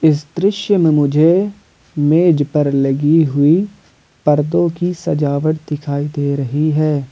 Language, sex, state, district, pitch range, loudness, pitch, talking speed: Hindi, male, Jharkhand, Ranchi, 145-170 Hz, -15 LUFS, 150 Hz, 125 wpm